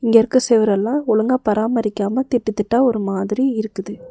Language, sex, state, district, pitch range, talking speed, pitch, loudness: Tamil, female, Tamil Nadu, Nilgiris, 210-250 Hz, 145 wpm, 225 Hz, -18 LUFS